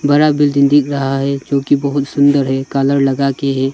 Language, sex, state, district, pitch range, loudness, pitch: Hindi, male, Arunachal Pradesh, Longding, 135-145 Hz, -14 LUFS, 140 Hz